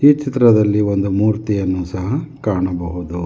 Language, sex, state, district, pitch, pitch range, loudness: Kannada, male, Karnataka, Bangalore, 105 Hz, 90-120 Hz, -17 LUFS